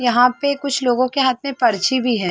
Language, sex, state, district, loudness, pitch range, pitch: Hindi, female, Chhattisgarh, Sarguja, -18 LUFS, 245-280 Hz, 255 Hz